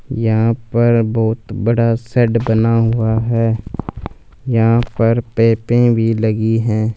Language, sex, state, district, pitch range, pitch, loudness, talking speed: Hindi, male, Punjab, Fazilka, 110-115 Hz, 115 Hz, -15 LUFS, 120 wpm